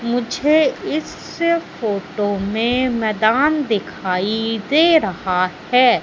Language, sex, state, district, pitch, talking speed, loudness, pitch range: Hindi, female, Madhya Pradesh, Katni, 230 Hz, 90 wpm, -18 LUFS, 205-295 Hz